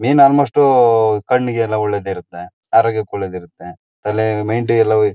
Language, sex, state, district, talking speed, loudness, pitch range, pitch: Kannada, male, Karnataka, Mysore, 130 wpm, -15 LUFS, 105-120 Hz, 110 Hz